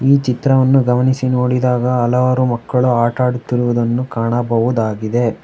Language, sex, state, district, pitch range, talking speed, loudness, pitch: Kannada, male, Karnataka, Bangalore, 120-130 Hz, 100 wpm, -15 LUFS, 125 Hz